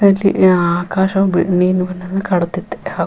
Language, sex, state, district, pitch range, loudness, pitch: Kannada, female, Karnataka, Raichur, 180-195 Hz, -15 LUFS, 185 Hz